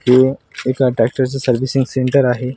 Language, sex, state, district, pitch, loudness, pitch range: Marathi, male, Maharashtra, Washim, 130 Hz, -16 LUFS, 125-135 Hz